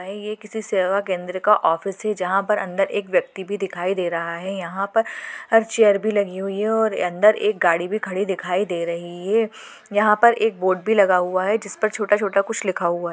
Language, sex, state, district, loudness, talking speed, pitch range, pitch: Hindi, female, Rajasthan, Churu, -21 LUFS, 215 wpm, 185-215 Hz, 200 Hz